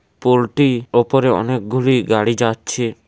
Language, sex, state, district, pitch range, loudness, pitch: Bengali, male, West Bengal, Dakshin Dinajpur, 115-130 Hz, -16 LUFS, 120 Hz